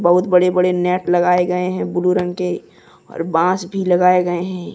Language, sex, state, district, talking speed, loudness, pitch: Hindi, male, Jharkhand, Deoghar, 200 wpm, -17 LUFS, 180 Hz